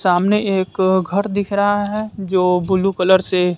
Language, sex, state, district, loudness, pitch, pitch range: Hindi, female, Bihar, West Champaran, -17 LUFS, 190 Hz, 185-200 Hz